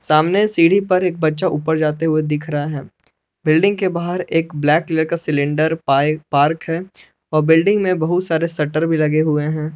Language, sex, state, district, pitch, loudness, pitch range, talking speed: Hindi, male, Jharkhand, Palamu, 160 Hz, -17 LUFS, 155-175 Hz, 190 wpm